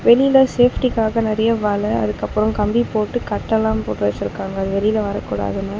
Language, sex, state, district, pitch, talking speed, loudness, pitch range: Tamil, female, Tamil Nadu, Chennai, 215 Hz, 135 wpm, -18 LUFS, 195-230 Hz